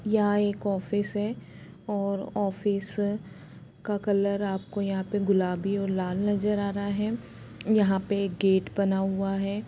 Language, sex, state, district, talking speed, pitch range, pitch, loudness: Hindi, female, Jharkhand, Jamtara, 155 wpm, 195-205 Hz, 200 Hz, -28 LUFS